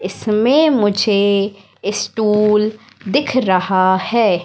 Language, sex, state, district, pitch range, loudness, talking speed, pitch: Hindi, female, Madhya Pradesh, Katni, 195-230 Hz, -16 LUFS, 95 wpm, 210 Hz